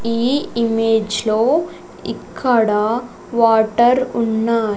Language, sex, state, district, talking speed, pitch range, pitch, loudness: Telugu, female, Andhra Pradesh, Sri Satya Sai, 75 wpm, 220-240 Hz, 230 Hz, -17 LUFS